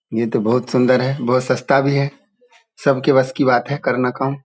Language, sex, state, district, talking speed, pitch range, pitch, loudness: Hindi, male, Bihar, Saharsa, 200 wpm, 125-140 Hz, 130 Hz, -17 LUFS